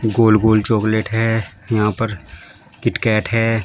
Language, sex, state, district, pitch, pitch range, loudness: Hindi, male, Uttar Pradesh, Shamli, 110 Hz, 105-115 Hz, -17 LUFS